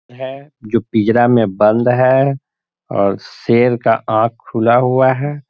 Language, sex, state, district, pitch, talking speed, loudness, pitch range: Hindi, male, Bihar, Sitamarhi, 120 Hz, 140 wpm, -14 LUFS, 115-130 Hz